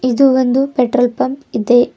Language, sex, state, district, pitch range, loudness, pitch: Kannada, female, Karnataka, Bidar, 245-265 Hz, -14 LUFS, 255 Hz